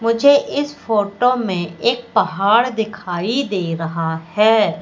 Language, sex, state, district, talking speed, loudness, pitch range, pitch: Hindi, female, Madhya Pradesh, Katni, 125 wpm, -17 LUFS, 180-240 Hz, 215 Hz